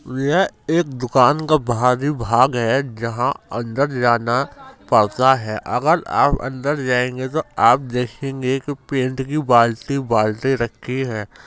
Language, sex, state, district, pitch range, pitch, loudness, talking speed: Hindi, male, Uttar Pradesh, Jyotiba Phule Nagar, 120-135 Hz, 130 Hz, -19 LUFS, 135 wpm